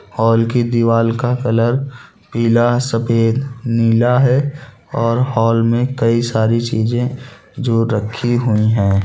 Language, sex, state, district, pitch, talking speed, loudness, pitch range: Hindi, male, Chhattisgarh, Balrampur, 115 Hz, 125 wpm, -16 LUFS, 115-125 Hz